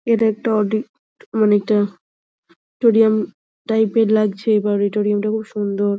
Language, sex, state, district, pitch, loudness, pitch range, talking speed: Bengali, female, West Bengal, Jhargram, 215 Hz, -18 LUFS, 205-220 Hz, 120 wpm